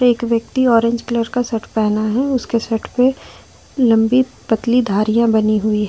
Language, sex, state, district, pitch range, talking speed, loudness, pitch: Hindi, female, Jharkhand, Ranchi, 220-245 Hz, 175 wpm, -16 LUFS, 230 Hz